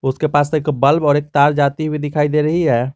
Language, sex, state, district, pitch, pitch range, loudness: Hindi, male, Jharkhand, Garhwa, 150 Hz, 140-150 Hz, -16 LUFS